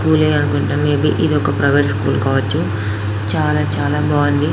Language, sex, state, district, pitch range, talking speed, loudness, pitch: Telugu, female, Telangana, Karimnagar, 105-150 Hz, 145 wpm, -16 LUFS, 140 Hz